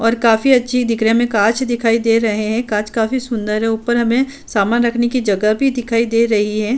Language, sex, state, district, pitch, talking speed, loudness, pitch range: Hindi, female, Uttar Pradesh, Budaun, 230 Hz, 240 wpm, -16 LUFS, 220-240 Hz